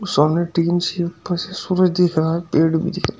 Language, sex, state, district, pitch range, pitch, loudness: Hindi, male, Uttar Pradesh, Shamli, 165-180 Hz, 175 Hz, -19 LUFS